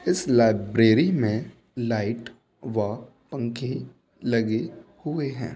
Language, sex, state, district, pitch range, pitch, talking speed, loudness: Hindi, male, Uttar Pradesh, Muzaffarnagar, 110-130 Hz, 120 Hz, 120 wpm, -25 LUFS